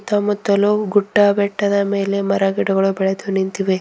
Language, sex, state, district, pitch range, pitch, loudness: Kannada, female, Karnataka, Bidar, 195-205 Hz, 200 Hz, -17 LUFS